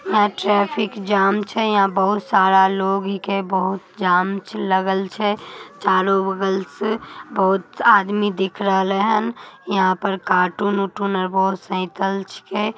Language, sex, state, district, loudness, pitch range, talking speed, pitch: Magahi, female, Bihar, Samastipur, -19 LUFS, 190-205 Hz, 135 wpm, 195 Hz